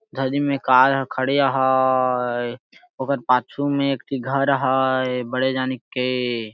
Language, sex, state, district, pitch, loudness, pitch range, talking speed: Sadri, male, Chhattisgarh, Jashpur, 130 Hz, -21 LUFS, 125-135 Hz, 135 wpm